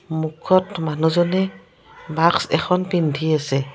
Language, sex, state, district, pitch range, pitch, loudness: Assamese, female, Assam, Kamrup Metropolitan, 155-180 Hz, 160 Hz, -20 LUFS